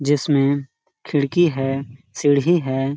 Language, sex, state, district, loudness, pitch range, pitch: Hindi, male, Chhattisgarh, Sarguja, -20 LUFS, 135-145 Hz, 140 Hz